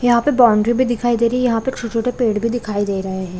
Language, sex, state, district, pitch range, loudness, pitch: Hindi, female, Chhattisgarh, Balrampur, 210-245 Hz, -17 LUFS, 235 Hz